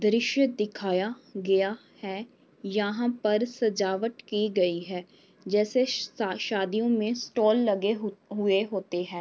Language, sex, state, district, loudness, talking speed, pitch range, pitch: Hindi, female, Uttar Pradesh, Varanasi, -27 LUFS, 130 wpm, 195-225 Hz, 210 Hz